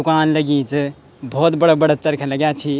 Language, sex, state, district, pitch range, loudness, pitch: Garhwali, male, Uttarakhand, Tehri Garhwal, 140-155 Hz, -17 LUFS, 150 Hz